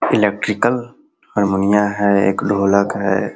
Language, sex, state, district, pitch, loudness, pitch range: Hindi, male, Bihar, Sitamarhi, 105 Hz, -17 LUFS, 100-115 Hz